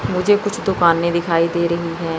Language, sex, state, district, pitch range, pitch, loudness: Hindi, male, Chandigarh, Chandigarh, 170-185 Hz, 170 Hz, -17 LUFS